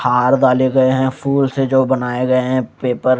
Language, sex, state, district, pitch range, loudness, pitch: Hindi, male, Punjab, Kapurthala, 125-130 Hz, -15 LUFS, 130 Hz